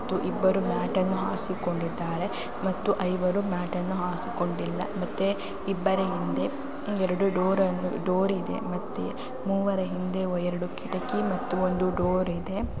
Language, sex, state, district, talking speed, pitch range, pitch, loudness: Kannada, female, Karnataka, Gulbarga, 125 wpm, 180-195 Hz, 190 Hz, -28 LUFS